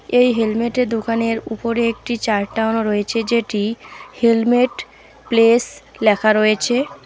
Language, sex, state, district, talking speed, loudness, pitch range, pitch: Bengali, female, West Bengal, Alipurduar, 130 wpm, -18 LUFS, 220-235 Hz, 230 Hz